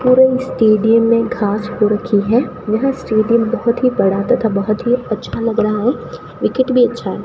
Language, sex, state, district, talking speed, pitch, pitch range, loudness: Hindi, female, Rajasthan, Bikaner, 190 wpm, 230 Hz, 215-250 Hz, -15 LUFS